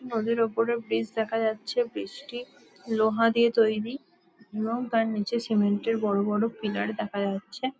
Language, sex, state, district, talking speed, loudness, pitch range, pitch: Bengali, female, West Bengal, Jalpaiguri, 155 wpm, -27 LUFS, 210-235 Hz, 225 Hz